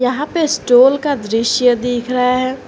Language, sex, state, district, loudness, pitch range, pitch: Hindi, female, Jharkhand, Garhwa, -14 LUFS, 245-275 Hz, 250 Hz